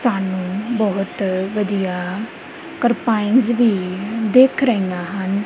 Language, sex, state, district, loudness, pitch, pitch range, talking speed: Punjabi, female, Punjab, Kapurthala, -19 LUFS, 210 Hz, 190-240 Hz, 90 wpm